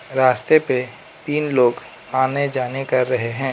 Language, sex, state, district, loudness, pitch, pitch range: Hindi, male, Manipur, Imphal West, -19 LUFS, 130 Hz, 125-140 Hz